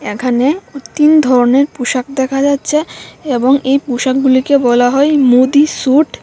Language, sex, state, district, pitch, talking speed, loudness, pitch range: Bengali, female, Tripura, West Tripura, 270 Hz, 135 wpm, -12 LUFS, 255-285 Hz